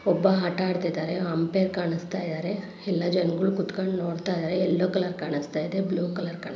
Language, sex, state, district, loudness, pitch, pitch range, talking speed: Kannada, female, Karnataka, Dharwad, -27 LUFS, 180 Hz, 170-190 Hz, 165 wpm